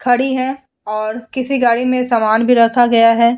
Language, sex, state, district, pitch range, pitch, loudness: Hindi, female, Uttar Pradesh, Budaun, 230-255 Hz, 245 Hz, -14 LUFS